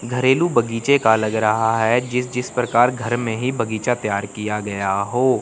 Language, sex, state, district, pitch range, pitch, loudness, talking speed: Hindi, male, Chandigarh, Chandigarh, 110-125 Hz, 120 Hz, -19 LUFS, 190 wpm